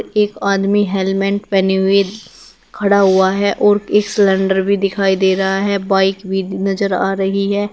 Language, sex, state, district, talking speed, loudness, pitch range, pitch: Hindi, female, Uttar Pradesh, Shamli, 170 wpm, -15 LUFS, 190-200 Hz, 195 Hz